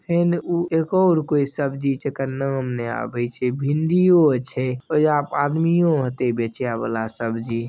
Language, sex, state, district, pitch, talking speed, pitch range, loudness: Maithili, male, Bihar, Begusarai, 140 Hz, 180 wpm, 125-160 Hz, -21 LUFS